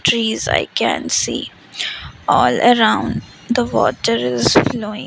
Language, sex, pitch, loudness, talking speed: English, female, 220 Hz, -17 LUFS, 120 wpm